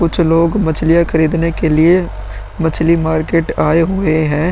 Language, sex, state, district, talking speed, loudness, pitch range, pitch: Hindi, male, Uttar Pradesh, Muzaffarnagar, 145 wpm, -13 LUFS, 155-170 Hz, 160 Hz